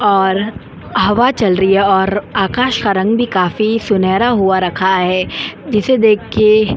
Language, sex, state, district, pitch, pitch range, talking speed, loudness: Hindi, female, Goa, North and South Goa, 200 Hz, 190-220 Hz, 170 wpm, -13 LUFS